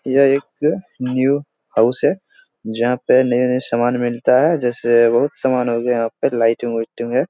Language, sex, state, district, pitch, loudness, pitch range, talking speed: Hindi, male, Bihar, Jahanabad, 125 Hz, -17 LUFS, 120-135 Hz, 175 wpm